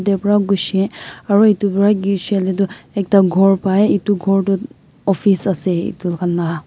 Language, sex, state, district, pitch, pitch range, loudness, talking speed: Nagamese, male, Nagaland, Kohima, 195 Hz, 185-200 Hz, -16 LUFS, 155 wpm